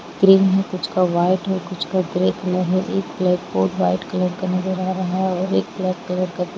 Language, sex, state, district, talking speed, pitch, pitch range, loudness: Hindi, female, Jharkhand, Jamtara, 235 wpm, 185 Hz, 180-190 Hz, -20 LUFS